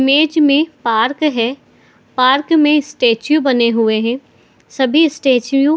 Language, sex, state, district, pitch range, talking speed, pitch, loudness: Hindi, female, Jharkhand, Jamtara, 240-300 Hz, 125 wpm, 275 Hz, -14 LUFS